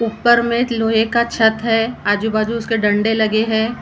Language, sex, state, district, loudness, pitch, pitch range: Hindi, female, Maharashtra, Gondia, -16 LUFS, 225 Hz, 220-230 Hz